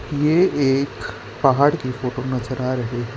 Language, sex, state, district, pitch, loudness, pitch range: Hindi, male, Gujarat, Valsad, 130 Hz, -20 LUFS, 125-140 Hz